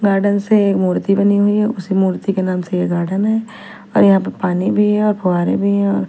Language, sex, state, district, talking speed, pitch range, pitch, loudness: Hindi, female, Punjab, Fazilka, 235 wpm, 180-205 Hz, 195 Hz, -16 LUFS